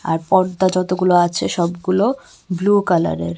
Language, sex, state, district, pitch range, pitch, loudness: Bengali, female, Tripura, West Tripura, 170-190 Hz, 180 Hz, -17 LUFS